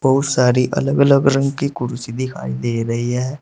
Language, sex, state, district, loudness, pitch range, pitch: Hindi, male, Uttar Pradesh, Shamli, -18 LUFS, 120-140 Hz, 130 Hz